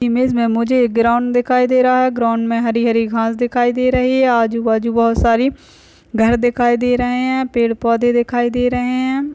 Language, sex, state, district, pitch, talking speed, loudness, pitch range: Hindi, female, Chhattisgarh, Sarguja, 240 Hz, 220 wpm, -15 LUFS, 230-250 Hz